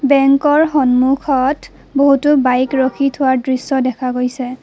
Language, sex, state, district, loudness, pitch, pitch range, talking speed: Assamese, female, Assam, Kamrup Metropolitan, -14 LUFS, 265 Hz, 255-280 Hz, 115 wpm